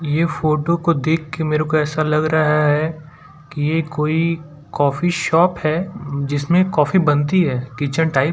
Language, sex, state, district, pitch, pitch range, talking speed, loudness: Hindi, male, Gujarat, Valsad, 155 Hz, 150-165 Hz, 165 wpm, -18 LUFS